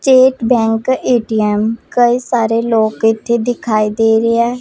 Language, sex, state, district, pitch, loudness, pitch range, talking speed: Punjabi, female, Punjab, Pathankot, 230 Hz, -14 LUFS, 225-245 Hz, 145 wpm